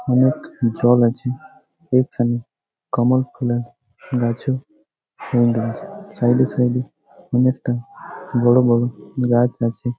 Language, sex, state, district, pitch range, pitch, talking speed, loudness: Bengali, male, West Bengal, Jhargram, 120-130 Hz, 125 Hz, 110 wpm, -19 LUFS